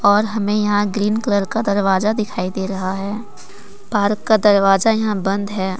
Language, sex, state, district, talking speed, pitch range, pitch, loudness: Hindi, female, Jharkhand, Deoghar, 175 wpm, 195-215 Hz, 205 Hz, -18 LUFS